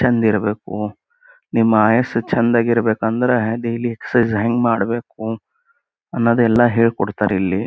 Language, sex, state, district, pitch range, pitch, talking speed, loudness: Kannada, male, Karnataka, Gulbarga, 110-120 Hz, 115 Hz, 115 wpm, -17 LUFS